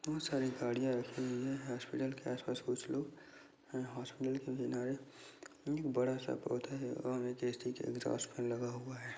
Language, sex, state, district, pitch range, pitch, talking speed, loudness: Hindi, male, Chhattisgarh, Bastar, 125-135 Hz, 130 Hz, 165 wpm, -40 LUFS